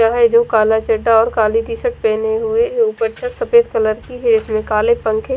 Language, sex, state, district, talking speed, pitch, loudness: Hindi, female, Punjab, Fazilka, 235 wpm, 240 Hz, -15 LUFS